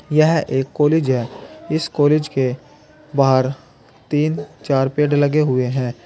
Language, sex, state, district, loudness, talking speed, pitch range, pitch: Hindi, male, Uttar Pradesh, Saharanpur, -18 LUFS, 140 wpm, 130-150 Hz, 145 Hz